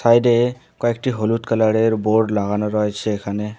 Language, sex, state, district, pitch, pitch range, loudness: Bengali, male, West Bengal, Alipurduar, 110 Hz, 105-115 Hz, -19 LUFS